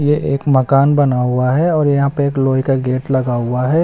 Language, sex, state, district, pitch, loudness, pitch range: Hindi, male, Bihar, West Champaran, 135 Hz, -15 LUFS, 130-145 Hz